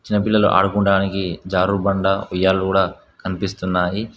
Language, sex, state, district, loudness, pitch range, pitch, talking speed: Telugu, male, Telangana, Mahabubabad, -19 LUFS, 95-100 Hz, 95 Hz, 115 wpm